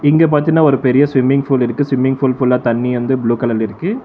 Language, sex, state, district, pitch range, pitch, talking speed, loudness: Tamil, male, Tamil Nadu, Chennai, 125-145 Hz, 130 Hz, 225 wpm, -14 LUFS